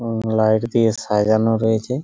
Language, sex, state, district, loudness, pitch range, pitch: Bengali, male, West Bengal, Purulia, -18 LUFS, 110-115 Hz, 110 Hz